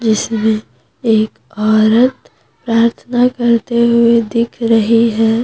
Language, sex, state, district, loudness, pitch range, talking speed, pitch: Hindi, female, Jharkhand, Deoghar, -13 LUFS, 220-235 Hz, 100 wpm, 230 Hz